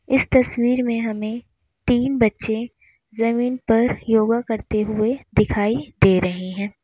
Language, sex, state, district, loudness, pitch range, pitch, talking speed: Hindi, female, Uttar Pradesh, Lalitpur, -20 LUFS, 215-240 Hz, 225 Hz, 130 wpm